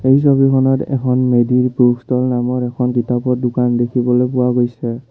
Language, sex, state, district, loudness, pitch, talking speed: Assamese, male, Assam, Kamrup Metropolitan, -15 LUFS, 125 Hz, 150 wpm